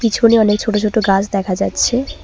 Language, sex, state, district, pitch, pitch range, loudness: Bengali, female, West Bengal, Cooch Behar, 215 Hz, 200-230 Hz, -15 LUFS